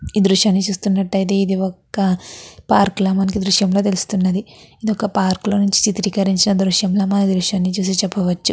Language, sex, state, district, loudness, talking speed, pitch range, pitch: Telugu, female, Andhra Pradesh, Guntur, -17 LUFS, 170 wpm, 190-200 Hz, 195 Hz